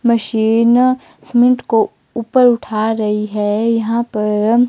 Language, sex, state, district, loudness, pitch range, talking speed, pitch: Hindi, female, Himachal Pradesh, Shimla, -15 LUFS, 215-240 Hz, 130 wpm, 230 Hz